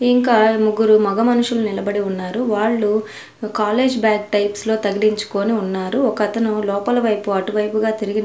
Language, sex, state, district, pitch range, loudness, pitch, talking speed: Telugu, female, Andhra Pradesh, Sri Satya Sai, 205-225 Hz, -18 LUFS, 215 Hz, 140 wpm